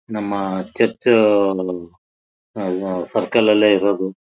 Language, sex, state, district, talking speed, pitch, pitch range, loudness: Kannada, male, Karnataka, Mysore, 100 wpm, 95 Hz, 90-105 Hz, -18 LUFS